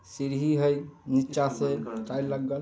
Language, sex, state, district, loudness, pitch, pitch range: Maithili, male, Bihar, Samastipur, -28 LUFS, 140 Hz, 130-145 Hz